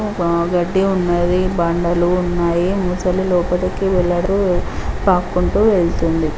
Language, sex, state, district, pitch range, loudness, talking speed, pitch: Telugu, female, Andhra Pradesh, Krishna, 175-185 Hz, -17 LUFS, 85 wpm, 180 Hz